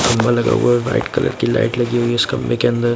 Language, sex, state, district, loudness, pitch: Hindi, male, Bihar, Gopalganj, -17 LUFS, 120 Hz